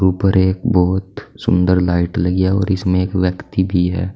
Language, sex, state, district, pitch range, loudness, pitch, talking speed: Hindi, male, Uttar Pradesh, Saharanpur, 90-95 Hz, -16 LUFS, 95 Hz, 190 wpm